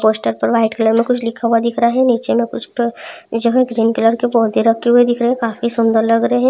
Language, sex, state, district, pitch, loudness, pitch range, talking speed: Hindi, female, Bihar, Madhepura, 235 Hz, -15 LUFS, 225-245 Hz, 270 wpm